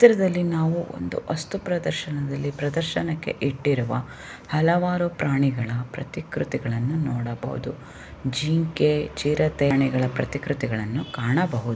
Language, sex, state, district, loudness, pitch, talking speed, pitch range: Kannada, female, Karnataka, Shimoga, -25 LUFS, 145 Hz, 85 wpm, 130-160 Hz